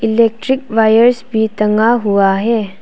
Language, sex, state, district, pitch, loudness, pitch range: Hindi, female, Arunachal Pradesh, Papum Pare, 220 Hz, -13 LUFS, 210-235 Hz